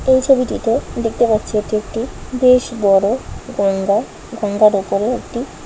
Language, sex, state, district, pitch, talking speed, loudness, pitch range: Bengali, female, West Bengal, Malda, 215 Hz, 125 wpm, -17 LUFS, 200-250 Hz